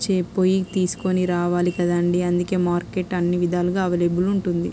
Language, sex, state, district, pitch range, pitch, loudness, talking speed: Telugu, female, Andhra Pradesh, Krishna, 175-185 Hz, 180 Hz, -21 LUFS, 125 wpm